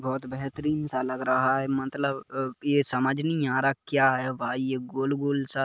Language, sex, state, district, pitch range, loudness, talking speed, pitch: Hindi, male, Chhattisgarh, Kabirdham, 130-140 Hz, -27 LUFS, 210 wpm, 135 Hz